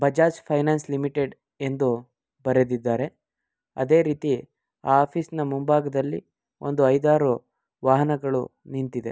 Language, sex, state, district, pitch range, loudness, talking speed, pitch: Kannada, male, Karnataka, Mysore, 130-150 Hz, -24 LUFS, 100 wpm, 140 Hz